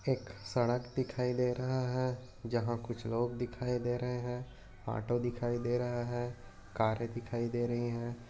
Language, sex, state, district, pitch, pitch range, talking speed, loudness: Hindi, male, Maharashtra, Aurangabad, 120 Hz, 120-125 Hz, 165 wpm, -36 LUFS